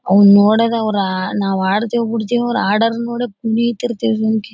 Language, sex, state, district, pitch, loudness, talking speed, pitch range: Kannada, female, Karnataka, Bellary, 220 Hz, -16 LUFS, 130 wpm, 200-235 Hz